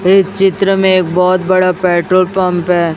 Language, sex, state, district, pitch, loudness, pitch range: Hindi, female, Chhattisgarh, Raipur, 185 Hz, -12 LUFS, 180-190 Hz